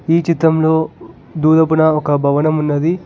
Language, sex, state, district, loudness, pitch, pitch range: Telugu, male, Telangana, Hyderabad, -14 LUFS, 160 Hz, 150-160 Hz